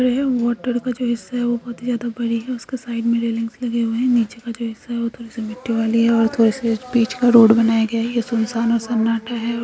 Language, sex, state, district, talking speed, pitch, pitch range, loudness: Hindi, female, Uttar Pradesh, Hamirpur, 280 wpm, 235 Hz, 230-240 Hz, -19 LUFS